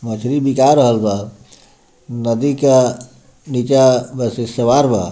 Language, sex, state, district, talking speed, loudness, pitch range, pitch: Bhojpuri, male, Bihar, Muzaffarpur, 105 wpm, -15 LUFS, 115-135 Hz, 125 Hz